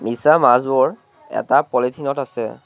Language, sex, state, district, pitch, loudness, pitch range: Assamese, male, Assam, Kamrup Metropolitan, 130 Hz, -17 LUFS, 120-140 Hz